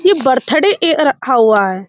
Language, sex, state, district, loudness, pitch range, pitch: Hindi, female, Uttar Pradesh, Budaun, -12 LUFS, 225-320 Hz, 270 Hz